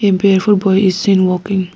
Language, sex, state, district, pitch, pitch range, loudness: English, female, Arunachal Pradesh, Lower Dibang Valley, 195 Hz, 190-200 Hz, -13 LUFS